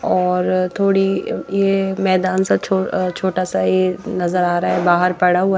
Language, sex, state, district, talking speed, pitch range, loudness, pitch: Hindi, female, Haryana, Jhajjar, 170 wpm, 180-190 Hz, -17 LUFS, 185 Hz